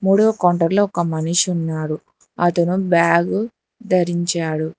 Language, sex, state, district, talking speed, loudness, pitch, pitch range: Telugu, female, Telangana, Hyderabad, 115 wpm, -18 LUFS, 175 Hz, 170-190 Hz